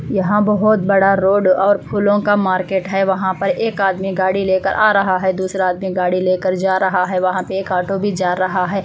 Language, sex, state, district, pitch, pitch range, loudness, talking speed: Hindi, female, Andhra Pradesh, Anantapur, 190 Hz, 185-195 Hz, -16 LUFS, 235 wpm